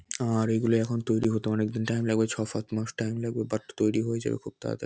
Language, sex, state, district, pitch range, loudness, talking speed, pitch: Bengali, male, West Bengal, North 24 Parganas, 110-115 Hz, -28 LUFS, 235 wpm, 110 Hz